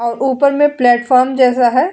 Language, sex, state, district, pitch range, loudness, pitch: Hindi, female, Uttar Pradesh, Etah, 245-270 Hz, -12 LUFS, 255 Hz